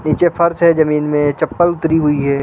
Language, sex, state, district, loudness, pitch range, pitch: Hindi, male, Uttarakhand, Uttarkashi, -14 LUFS, 150-170 Hz, 155 Hz